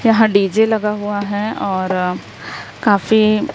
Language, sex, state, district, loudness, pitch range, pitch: Hindi, female, Maharashtra, Gondia, -16 LUFS, 195-220 Hz, 205 Hz